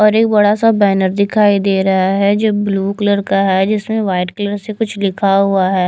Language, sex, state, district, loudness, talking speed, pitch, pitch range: Hindi, female, Chandigarh, Chandigarh, -14 LUFS, 225 wpm, 200 Hz, 195-210 Hz